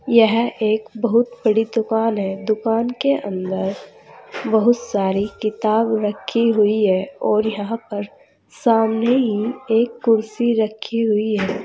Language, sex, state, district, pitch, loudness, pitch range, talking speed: Hindi, female, Uttar Pradesh, Saharanpur, 220 Hz, -19 LUFS, 210-230 Hz, 130 wpm